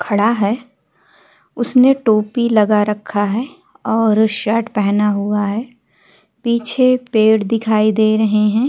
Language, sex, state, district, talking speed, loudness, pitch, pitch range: Hindi, female, Uttar Pradesh, Hamirpur, 125 wpm, -15 LUFS, 220 Hz, 210-235 Hz